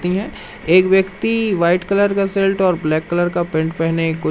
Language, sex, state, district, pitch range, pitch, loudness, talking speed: Hindi, male, Madhya Pradesh, Umaria, 165-195 Hz, 180 Hz, -17 LUFS, 195 wpm